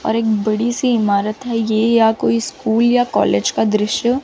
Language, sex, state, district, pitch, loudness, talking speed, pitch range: Hindi, female, Chandigarh, Chandigarh, 225 Hz, -16 LUFS, 200 wpm, 215-235 Hz